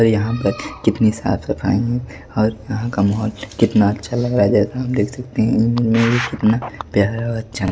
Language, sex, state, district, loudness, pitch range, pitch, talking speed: Hindi, male, Delhi, New Delhi, -18 LUFS, 105-120 Hz, 110 Hz, 185 wpm